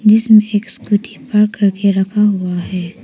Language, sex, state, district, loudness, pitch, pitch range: Hindi, female, Arunachal Pradesh, Papum Pare, -14 LUFS, 205 Hz, 190-215 Hz